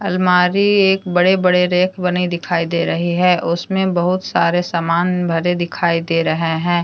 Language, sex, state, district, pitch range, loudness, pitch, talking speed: Hindi, female, Jharkhand, Deoghar, 170-180 Hz, -16 LUFS, 175 Hz, 165 wpm